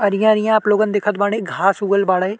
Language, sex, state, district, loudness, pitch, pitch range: Bhojpuri, male, Uttar Pradesh, Deoria, -17 LUFS, 205 Hz, 195-215 Hz